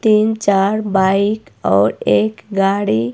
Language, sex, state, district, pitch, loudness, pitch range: Hindi, female, Himachal Pradesh, Shimla, 205 Hz, -16 LUFS, 195-215 Hz